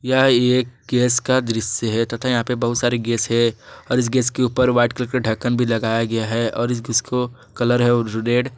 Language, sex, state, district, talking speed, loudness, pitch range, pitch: Hindi, male, Jharkhand, Garhwa, 240 wpm, -19 LUFS, 115-125 Hz, 120 Hz